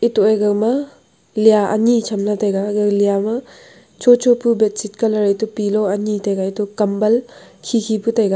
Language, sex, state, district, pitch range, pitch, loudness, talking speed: Wancho, female, Arunachal Pradesh, Longding, 205-230 Hz, 215 Hz, -17 LUFS, 195 wpm